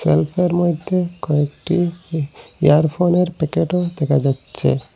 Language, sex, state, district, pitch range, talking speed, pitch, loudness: Bengali, male, Assam, Hailakandi, 145-175 Hz, 110 wpm, 165 Hz, -19 LUFS